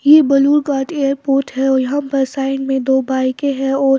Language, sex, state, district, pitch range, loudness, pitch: Hindi, female, Bihar, Patna, 270-280 Hz, -16 LUFS, 270 Hz